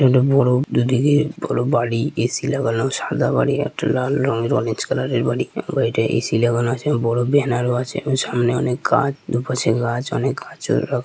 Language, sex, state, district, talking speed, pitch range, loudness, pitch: Bengali, male, West Bengal, Purulia, 195 wpm, 120-135 Hz, -19 LUFS, 125 Hz